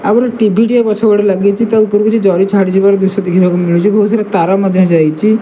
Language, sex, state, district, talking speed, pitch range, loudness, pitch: Odia, male, Odisha, Malkangiri, 210 wpm, 190-215 Hz, -11 LUFS, 205 Hz